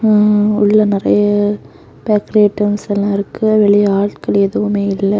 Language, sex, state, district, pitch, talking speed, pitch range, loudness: Tamil, female, Tamil Nadu, Kanyakumari, 205 Hz, 125 wpm, 200-210 Hz, -13 LUFS